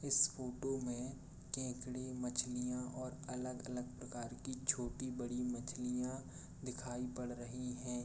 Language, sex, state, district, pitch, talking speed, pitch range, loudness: Hindi, male, Uttar Pradesh, Jalaun, 125 Hz, 110 wpm, 125-130 Hz, -42 LUFS